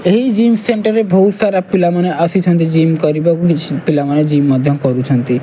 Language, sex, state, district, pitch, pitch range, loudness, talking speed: Odia, male, Odisha, Malkangiri, 170 Hz, 145-190 Hz, -13 LUFS, 165 wpm